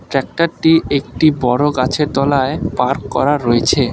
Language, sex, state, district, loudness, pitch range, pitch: Bengali, male, West Bengal, Alipurduar, -15 LUFS, 130-150 Hz, 140 Hz